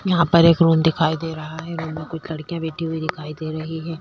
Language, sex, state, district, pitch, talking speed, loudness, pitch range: Hindi, female, Chhattisgarh, Korba, 160 Hz, 270 wpm, -21 LUFS, 155-165 Hz